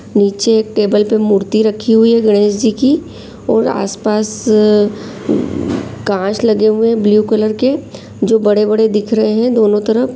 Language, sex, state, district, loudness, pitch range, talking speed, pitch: Angika, female, Bihar, Supaul, -13 LUFS, 210-225 Hz, 165 wpm, 215 Hz